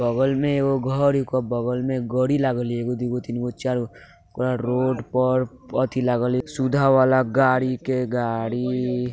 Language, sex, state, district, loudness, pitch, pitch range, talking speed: Hindi, male, Bihar, Muzaffarpur, -22 LUFS, 130 Hz, 125-130 Hz, 170 wpm